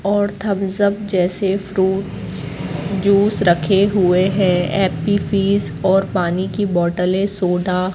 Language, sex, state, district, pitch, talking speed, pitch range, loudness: Hindi, female, Madhya Pradesh, Katni, 190 Hz, 130 wpm, 180-200 Hz, -17 LUFS